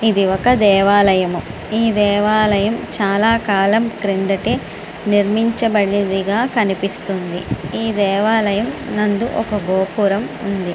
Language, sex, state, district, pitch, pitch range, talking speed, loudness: Telugu, male, Andhra Pradesh, Srikakulam, 205 Hz, 195-220 Hz, 90 wpm, -17 LUFS